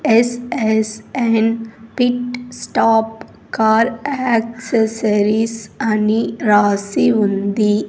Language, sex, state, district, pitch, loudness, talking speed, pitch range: Telugu, female, Andhra Pradesh, Sri Satya Sai, 225 Hz, -17 LUFS, 60 wpm, 215-240 Hz